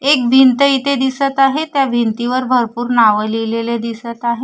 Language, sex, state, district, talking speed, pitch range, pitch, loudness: Marathi, female, Maharashtra, Gondia, 160 wpm, 235-270 Hz, 245 Hz, -14 LUFS